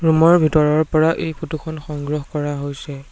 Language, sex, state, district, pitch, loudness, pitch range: Assamese, male, Assam, Sonitpur, 155 Hz, -19 LUFS, 145-160 Hz